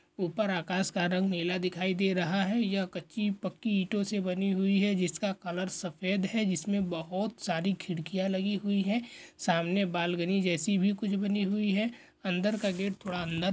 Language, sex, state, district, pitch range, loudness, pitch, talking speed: Hindi, male, Chhattisgarh, Korba, 180-200 Hz, -31 LUFS, 195 Hz, 180 wpm